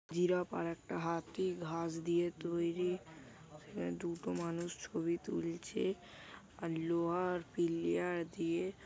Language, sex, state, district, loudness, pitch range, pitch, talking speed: Bengali, male, West Bengal, Kolkata, -38 LUFS, 160-175 Hz, 170 Hz, 100 wpm